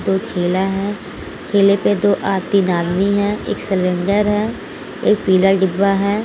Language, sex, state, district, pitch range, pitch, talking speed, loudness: Hindi, female, Jharkhand, Garhwa, 190-205 Hz, 195 Hz, 155 wpm, -17 LUFS